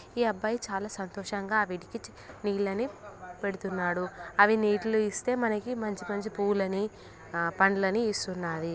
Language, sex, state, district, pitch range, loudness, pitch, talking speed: Telugu, female, Telangana, Karimnagar, 190-215 Hz, -30 LUFS, 205 Hz, 115 wpm